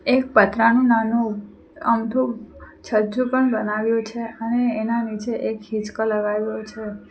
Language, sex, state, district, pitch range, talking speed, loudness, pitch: Gujarati, female, Gujarat, Valsad, 215-235 Hz, 135 wpm, -21 LUFS, 225 Hz